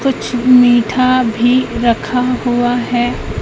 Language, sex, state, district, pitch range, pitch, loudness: Hindi, female, Madhya Pradesh, Katni, 240-250 Hz, 245 Hz, -13 LUFS